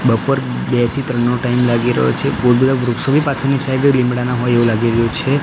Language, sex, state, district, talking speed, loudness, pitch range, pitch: Gujarati, male, Gujarat, Gandhinagar, 230 wpm, -15 LUFS, 120-135 Hz, 125 Hz